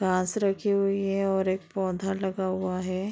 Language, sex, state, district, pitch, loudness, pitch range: Hindi, female, Uttar Pradesh, Deoria, 190 Hz, -27 LUFS, 185-195 Hz